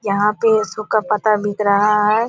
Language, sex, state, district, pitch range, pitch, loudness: Hindi, female, Bihar, Purnia, 205-215 Hz, 210 Hz, -16 LUFS